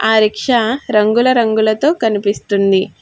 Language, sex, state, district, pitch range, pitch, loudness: Telugu, female, Telangana, Hyderabad, 210-240 Hz, 220 Hz, -14 LUFS